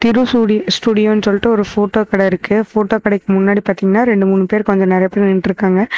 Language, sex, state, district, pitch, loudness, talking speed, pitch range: Tamil, female, Tamil Nadu, Namakkal, 205 Hz, -14 LUFS, 170 wpm, 195-215 Hz